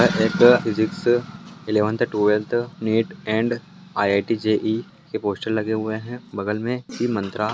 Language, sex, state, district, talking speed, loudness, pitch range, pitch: Hindi, male, Bihar, Purnia, 125 wpm, -22 LUFS, 105-120 Hz, 110 Hz